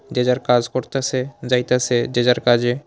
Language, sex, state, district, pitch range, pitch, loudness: Bengali, male, Tripura, Unakoti, 120-130 Hz, 125 Hz, -19 LUFS